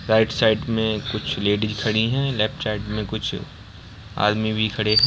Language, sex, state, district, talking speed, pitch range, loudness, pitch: Hindi, male, Bihar, Bhagalpur, 175 wpm, 105-110 Hz, -22 LUFS, 110 Hz